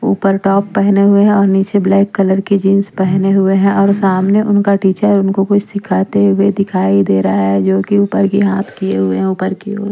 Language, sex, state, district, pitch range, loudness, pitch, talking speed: Hindi, female, Bihar, Patna, 190-200 Hz, -12 LUFS, 195 Hz, 225 wpm